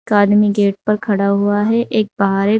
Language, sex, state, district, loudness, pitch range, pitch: Hindi, female, Uttar Pradesh, Saharanpur, -15 LUFS, 200-215 Hz, 205 Hz